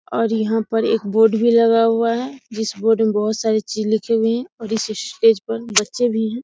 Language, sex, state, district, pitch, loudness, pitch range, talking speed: Hindi, female, Bihar, Samastipur, 225 Hz, -18 LUFS, 220-230 Hz, 240 wpm